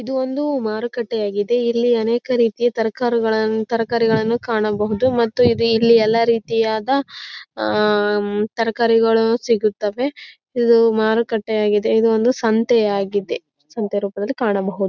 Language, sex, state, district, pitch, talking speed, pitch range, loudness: Kannada, female, Karnataka, Raichur, 225 Hz, 95 wpm, 215-235 Hz, -18 LUFS